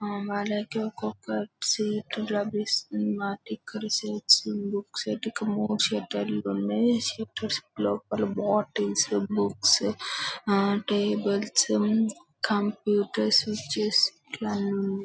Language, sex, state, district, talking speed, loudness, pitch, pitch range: Telugu, female, Telangana, Karimnagar, 110 wpm, -27 LUFS, 205 Hz, 145-215 Hz